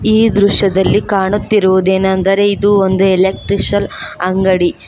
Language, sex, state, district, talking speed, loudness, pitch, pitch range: Kannada, female, Karnataka, Koppal, 85 wpm, -12 LUFS, 190 Hz, 190-205 Hz